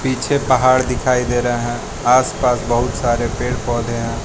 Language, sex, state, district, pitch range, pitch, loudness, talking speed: Hindi, male, Arunachal Pradesh, Lower Dibang Valley, 120-130 Hz, 120 Hz, -17 LUFS, 170 wpm